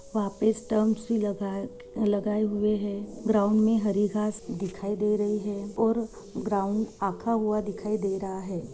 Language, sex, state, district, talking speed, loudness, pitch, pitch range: Hindi, female, Chhattisgarh, Jashpur, 150 wpm, -28 LUFS, 210 Hz, 200-220 Hz